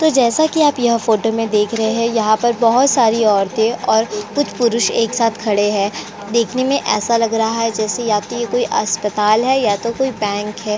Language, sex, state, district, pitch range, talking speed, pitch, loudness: Hindi, female, Uttar Pradesh, Jyotiba Phule Nagar, 215-240 Hz, 225 wpm, 230 Hz, -16 LUFS